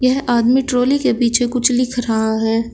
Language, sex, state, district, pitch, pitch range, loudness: Hindi, male, Uttar Pradesh, Shamli, 245 Hz, 235-255 Hz, -16 LUFS